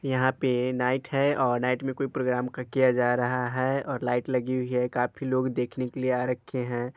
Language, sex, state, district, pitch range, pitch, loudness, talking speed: Hindi, male, Bihar, Muzaffarpur, 125-130 Hz, 125 Hz, -27 LUFS, 225 wpm